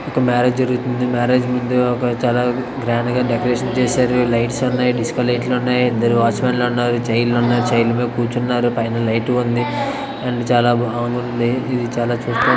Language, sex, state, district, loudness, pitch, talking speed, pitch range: Telugu, male, Andhra Pradesh, Visakhapatnam, -18 LUFS, 120 Hz, 185 wpm, 120-125 Hz